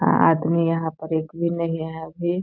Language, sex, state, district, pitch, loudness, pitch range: Hindi, female, Bihar, Saran, 160 Hz, -23 LUFS, 160-170 Hz